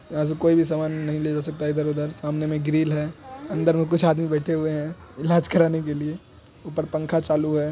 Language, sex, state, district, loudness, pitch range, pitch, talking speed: Hindi, male, Bihar, Madhepura, -23 LUFS, 150-165 Hz, 155 Hz, 240 wpm